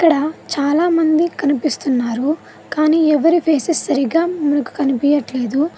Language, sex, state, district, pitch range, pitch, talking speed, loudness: Telugu, female, Telangana, Mahabubabad, 280-325 Hz, 300 Hz, 95 wpm, -17 LUFS